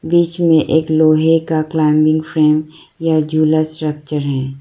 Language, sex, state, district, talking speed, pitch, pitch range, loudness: Hindi, female, Arunachal Pradesh, Lower Dibang Valley, 145 wpm, 155 Hz, 155-160 Hz, -15 LUFS